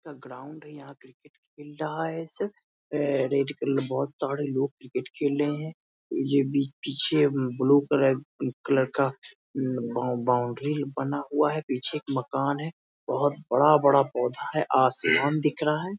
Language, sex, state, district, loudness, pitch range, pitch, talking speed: Hindi, male, Bihar, Muzaffarpur, -26 LUFS, 135-150 Hz, 140 Hz, 160 wpm